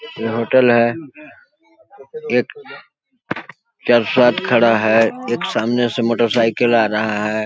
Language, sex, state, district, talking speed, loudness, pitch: Hindi, male, Chhattisgarh, Balrampur, 120 wpm, -16 LUFS, 120 Hz